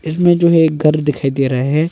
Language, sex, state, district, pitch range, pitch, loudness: Hindi, male, Arunachal Pradesh, Longding, 145-165 Hz, 155 Hz, -14 LUFS